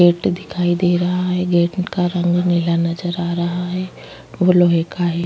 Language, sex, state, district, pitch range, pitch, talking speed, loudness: Hindi, female, Chhattisgarh, Kabirdham, 175-180 Hz, 175 Hz, 195 wpm, -18 LUFS